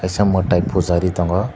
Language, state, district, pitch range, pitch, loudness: Kokborok, Tripura, Dhalai, 90-95 Hz, 90 Hz, -18 LUFS